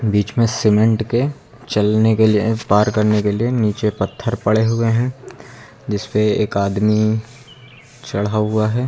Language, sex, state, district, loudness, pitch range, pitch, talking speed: Hindi, male, Uttar Pradesh, Lucknow, -17 LUFS, 105-120 Hz, 110 Hz, 150 wpm